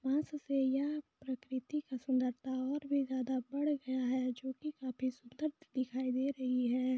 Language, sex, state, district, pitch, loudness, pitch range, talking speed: Hindi, female, Jharkhand, Jamtara, 260 Hz, -37 LUFS, 255-280 Hz, 190 wpm